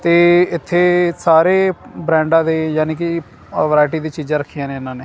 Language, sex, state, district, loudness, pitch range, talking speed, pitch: Punjabi, male, Punjab, Kapurthala, -16 LUFS, 150-170 Hz, 180 wpm, 160 Hz